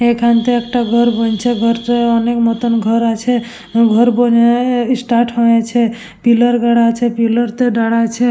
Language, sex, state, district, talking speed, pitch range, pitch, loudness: Bengali, female, West Bengal, Purulia, 150 wpm, 230-240 Hz, 235 Hz, -13 LUFS